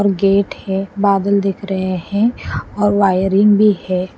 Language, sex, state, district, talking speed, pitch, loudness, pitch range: Hindi, female, Haryana, Rohtak, 130 wpm, 195 Hz, -16 LUFS, 190-205 Hz